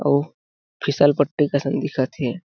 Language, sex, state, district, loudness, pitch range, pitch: Chhattisgarhi, male, Chhattisgarh, Jashpur, -21 LUFS, 130-145 Hz, 140 Hz